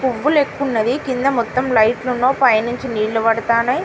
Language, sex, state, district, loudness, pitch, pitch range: Telugu, female, Telangana, Karimnagar, -17 LUFS, 245 Hz, 230-260 Hz